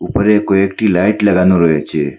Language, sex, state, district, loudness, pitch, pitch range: Bengali, male, Assam, Hailakandi, -12 LUFS, 95 Hz, 85-105 Hz